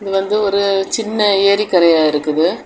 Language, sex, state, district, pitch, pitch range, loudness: Tamil, female, Tamil Nadu, Kanyakumari, 195 Hz, 170-205 Hz, -14 LUFS